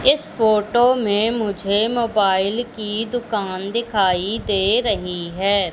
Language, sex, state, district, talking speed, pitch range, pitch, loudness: Hindi, female, Madhya Pradesh, Katni, 115 wpm, 195-235 Hz, 210 Hz, -19 LUFS